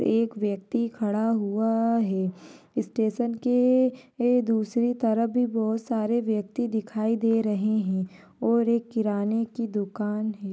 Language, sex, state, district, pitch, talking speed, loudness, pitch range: Hindi, female, Uttar Pradesh, Ghazipur, 225 Hz, 135 wpm, -26 LUFS, 210-235 Hz